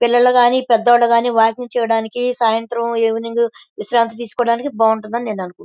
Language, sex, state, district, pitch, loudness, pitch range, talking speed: Telugu, female, Andhra Pradesh, Krishna, 235 Hz, -16 LUFS, 225-240 Hz, 160 wpm